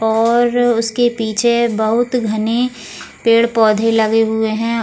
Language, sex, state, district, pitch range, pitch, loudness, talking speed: Hindi, female, Goa, North and South Goa, 220-240 Hz, 230 Hz, -15 LUFS, 125 wpm